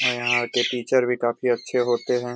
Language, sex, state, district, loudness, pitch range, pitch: Hindi, male, Jharkhand, Jamtara, -22 LUFS, 120-125 Hz, 120 Hz